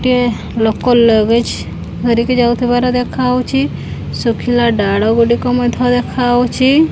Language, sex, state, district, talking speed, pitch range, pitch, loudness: Odia, female, Odisha, Khordha, 95 wpm, 235-250 Hz, 245 Hz, -13 LUFS